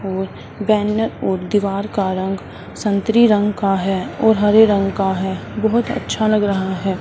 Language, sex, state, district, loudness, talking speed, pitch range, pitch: Hindi, female, Punjab, Fazilka, -18 LUFS, 170 wpm, 190-215 Hz, 200 Hz